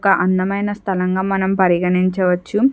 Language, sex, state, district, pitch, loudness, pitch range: Telugu, female, Andhra Pradesh, Chittoor, 190 Hz, -17 LUFS, 180-200 Hz